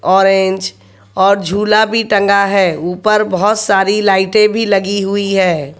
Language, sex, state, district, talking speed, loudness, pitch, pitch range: Hindi, male, Haryana, Jhajjar, 145 wpm, -12 LUFS, 195 Hz, 190-210 Hz